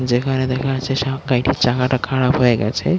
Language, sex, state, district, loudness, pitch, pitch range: Bengali, male, West Bengal, Dakshin Dinajpur, -18 LUFS, 130 Hz, 125-135 Hz